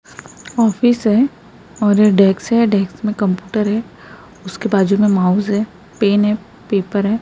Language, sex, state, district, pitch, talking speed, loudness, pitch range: Hindi, female, Maharashtra, Gondia, 205 Hz, 135 wpm, -16 LUFS, 195-220 Hz